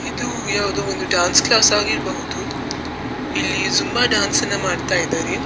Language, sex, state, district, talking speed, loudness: Kannada, female, Karnataka, Dakshina Kannada, 120 wpm, -18 LUFS